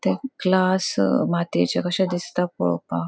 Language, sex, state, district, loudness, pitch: Konkani, female, Goa, North and South Goa, -22 LUFS, 175 Hz